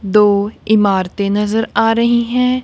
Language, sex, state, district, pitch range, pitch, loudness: Hindi, female, Punjab, Kapurthala, 205-235 Hz, 215 Hz, -14 LUFS